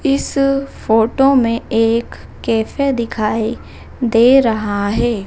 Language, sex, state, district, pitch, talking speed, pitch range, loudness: Hindi, female, Madhya Pradesh, Dhar, 230 Hz, 105 wpm, 225-270 Hz, -15 LUFS